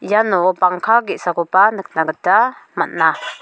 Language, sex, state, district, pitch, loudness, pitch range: Garo, female, Meghalaya, South Garo Hills, 195 Hz, -16 LUFS, 180-230 Hz